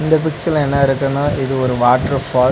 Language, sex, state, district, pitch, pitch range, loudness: Tamil, male, Tamil Nadu, Nilgiris, 135 Hz, 130-145 Hz, -16 LUFS